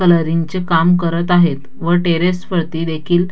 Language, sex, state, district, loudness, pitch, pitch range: Marathi, female, Maharashtra, Dhule, -16 LUFS, 170 Hz, 165-180 Hz